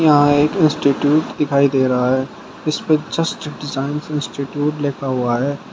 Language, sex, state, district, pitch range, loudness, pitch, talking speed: Hindi, male, Uttar Pradesh, Shamli, 140-150 Hz, -18 LUFS, 145 Hz, 155 wpm